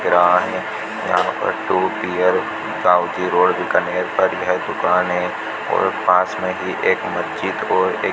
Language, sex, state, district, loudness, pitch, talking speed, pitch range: Hindi, male, Rajasthan, Bikaner, -19 LUFS, 90 Hz, 145 wpm, 90-95 Hz